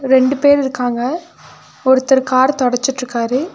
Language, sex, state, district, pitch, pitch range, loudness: Tamil, female, Tamil Nadu, Nilgiris, 260 Hz, 250-270 Hz, -15 LUFS